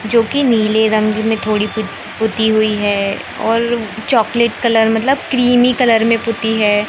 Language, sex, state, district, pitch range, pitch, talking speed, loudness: Hindi, male, Madhya Pradesh, Katni, 215-235 Hz, 225 Hz, 155 wpm, -14 LUFS